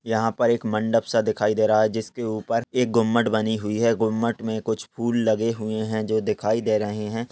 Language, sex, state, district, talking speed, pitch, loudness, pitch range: Hindi, male, Maharashtra, Sindhudurg, 230 wpm, 110 Hz, -23 LUFS, 110-115 Hz